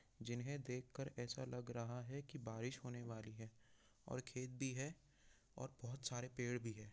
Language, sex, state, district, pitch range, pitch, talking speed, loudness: Hindi, male, Bihar, East Champaran, 115-130 Hz, 125 Hz, 340 wpm, -49 LUFS